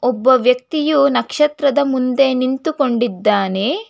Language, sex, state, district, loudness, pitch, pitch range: Kannada, female, Karnataka, Bangalore, -16 LUFS, 260 Hz, 250-285 Hz